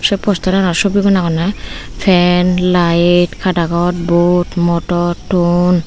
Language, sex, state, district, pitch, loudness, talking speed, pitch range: Chakma, female, Tripura, Unakoti, 175 Hz, -13 LUFS, 100 wpm, 175-185 Hz